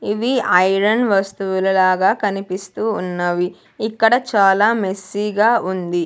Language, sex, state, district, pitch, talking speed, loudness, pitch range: Telugu, female, Andhra Pradesh, Sri Satya Sai, 195 Hz, 100 wpm, -17 LUFS, 185-220 Hz